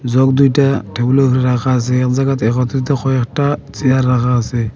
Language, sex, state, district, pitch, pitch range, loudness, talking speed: Bengali, male, Assam, Hailakandi, 130 Hz, 125-135 Hz, -14 LUFS, 165 wpm